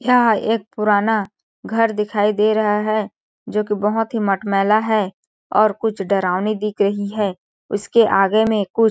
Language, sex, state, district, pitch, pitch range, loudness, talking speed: Hindi, female, Chhattisgarh, Balrampur, 210 Hz, 200-220 Hz, -18 LUFS, 160 wpm